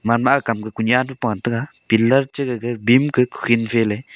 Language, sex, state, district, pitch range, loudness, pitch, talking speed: Wancho, male, Arunachal Pradesh, Longding, 115-130 Hz, -19 LUFS, 120 Hz, 175 wpm